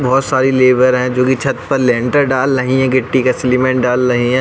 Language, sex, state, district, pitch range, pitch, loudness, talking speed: Hindi, male, Uttar Pradesh, Jalaun, 125-130 Hz, 130 Hz, -13 LUFS, 245 wpm